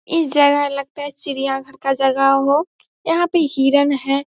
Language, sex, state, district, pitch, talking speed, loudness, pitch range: Hindi, female, Bihar, Saharsa, 280 Hz, 165 wpm, -17 LUFS, 275-290 Hz